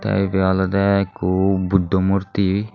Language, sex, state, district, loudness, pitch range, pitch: Chakma, male, Tripura, Unakoti, -19 LUFS, 95-100 Hz, 95 Hz